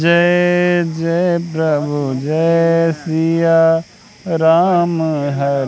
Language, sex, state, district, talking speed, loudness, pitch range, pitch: Hindi, male, Madhya Pradesh, Katni, 75 wpm, -15 LUFS, 160-170 Hz, 165 Hz